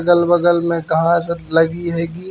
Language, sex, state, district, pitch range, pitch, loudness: Hindi, male, Uttar Pradesh, Hamirpur, 165-175 Hz, 170 Hz, -16 LUFS